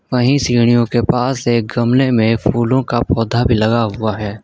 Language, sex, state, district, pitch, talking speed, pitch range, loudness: Hindi, male, Uttar Pradesh, Lucknow, 120 Hz, 190 wpm, 115-125 Hz, -15 LUFS